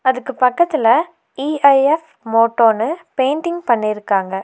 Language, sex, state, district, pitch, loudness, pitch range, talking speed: Tamil, female, Tamil Nadu, Nilgiris, 260 Hz, -16 LUFS, 225-300 Hz, 80 wpm